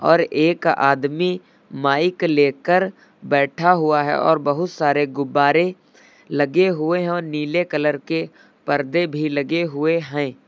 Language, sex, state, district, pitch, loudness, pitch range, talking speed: Hindi, male, Uttar Pradesh, Lucknow, 155 Hz, -19 LUFS, 145-175 Hz, 135 wpm